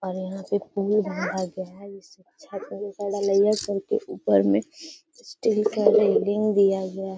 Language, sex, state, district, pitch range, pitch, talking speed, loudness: Hindi, female, Bihar, Gaya, 190-210 Hz, 200 Hz, 140 wpm, -24 LUFS